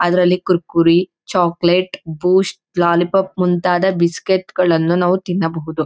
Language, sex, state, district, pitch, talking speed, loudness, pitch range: Kannada, female, Karnataka, Mysore, 175 Hz, 100 wpm, -16 LUFS, 170-185 Hz